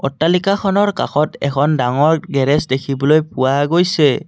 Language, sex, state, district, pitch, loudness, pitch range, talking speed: Assamese, male, Assam, Kamrup Metropolitan, 150 Hz, -16 LUFS, 140-170 Hz, 110 wpm